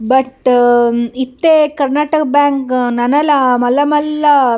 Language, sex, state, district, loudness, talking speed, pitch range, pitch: Tulu, female, Karnataka, Dakshina Kannada, -12 LUFS, 105 wpm, 245-295 Hz, 265 Hz